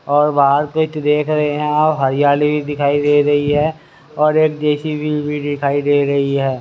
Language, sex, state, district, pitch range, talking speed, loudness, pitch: Hindi, male, Haryana, Rohtak, 145-150 Hz, 180 wpm, -16 LUFS, 145 Hz